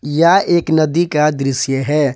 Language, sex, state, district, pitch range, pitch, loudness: Hindi, male, Jharkhand, Ranchi, 140-165 Hz, 150 Hz, -14 LUFS